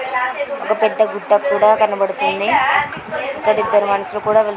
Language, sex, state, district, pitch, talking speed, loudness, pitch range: Telugu, female, Andhra Pradesh, Srikakulam, 215 Hz, 130 wpm, -16 LUFS, 205-250 Hz